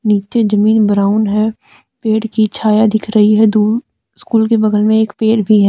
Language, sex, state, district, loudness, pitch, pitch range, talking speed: Hindi, female, Jharkhand, Deoghar, -13 LUFS, 215 Hz, 210-220 Hz, 200 wpm